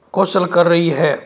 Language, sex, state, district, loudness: Marwari, male, Rajasthan, Nagaur, -14 LUFS